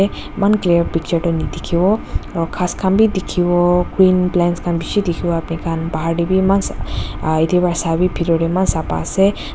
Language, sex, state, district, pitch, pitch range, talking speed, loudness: Nagamese, female, Nagaland, Dimapur, 175 Hz, 165-190 Hz, 200 wpm, -17 LUFS